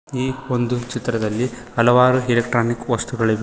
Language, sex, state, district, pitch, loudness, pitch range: Kannada, male, Karnataka, Koppal, 120 Hz, -19 LUFS, 120-125 Hz